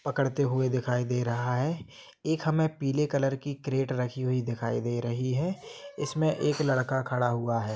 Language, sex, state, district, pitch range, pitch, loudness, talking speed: Hindi, male, Jharkhand, Jamtara, 125-150 Hz, 130 Hz, -29 LUFS, 185 wpm